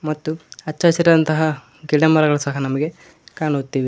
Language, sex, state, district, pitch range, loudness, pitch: Kannada, male, Karnataka, Koppal, 145-160 Hz, -18 LUFS, 155 Hz